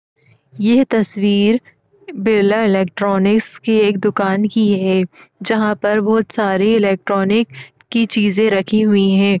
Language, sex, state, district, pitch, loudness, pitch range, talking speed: Hindi, female, Uttar Pradesh, Etah, 210 Hz, -15 LUFS, 200-220 Hz, 120 wpm